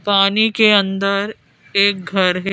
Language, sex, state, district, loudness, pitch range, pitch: Hindi, female, Madhya Pradesh, Bhopal, -15 LUFS, 195-205 Hz, 200 Hz